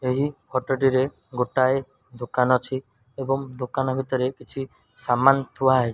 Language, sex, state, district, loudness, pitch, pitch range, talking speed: Odia, male, Odisha, Malkangiri, -24 LUFS, 130 Hz, 125-135 Hz, 130 wpm